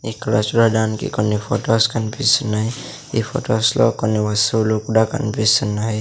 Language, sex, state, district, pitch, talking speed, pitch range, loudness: Telugu, male, Andhra Pradesh, Sri Satya Sai, 110 Hz, 120 wpm, 110-115 Hz, -18 LUFS